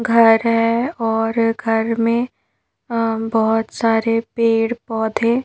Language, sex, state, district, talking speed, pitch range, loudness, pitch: Hindi, female, Madhya Pradesh, Bhopal, 110 wpm, 225-230 Hz, -18 LUFS, 230 Hz